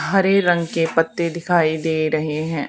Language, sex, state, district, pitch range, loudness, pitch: Hindi, female, Haryana, Charkhi Dadri, 155-175 Hz, -19 LUFS, 165 Hz